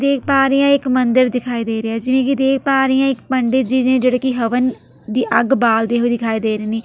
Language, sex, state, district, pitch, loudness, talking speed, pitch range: Punjabi, female, Delhi, New Delhi, 255 Hz, -16 LUFS, 270 wpm, 235-265 Hz